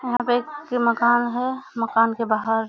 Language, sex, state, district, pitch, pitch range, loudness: Hindi, female, Bihar, Kishanganj, 240 Hz, 230-245 Hz, -22 LUFS